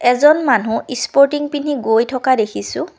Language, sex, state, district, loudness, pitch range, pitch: Assamese, female, Assam, Kamrup Metropolitan, -16 LUFS, 225-290 Hz, 255 Hz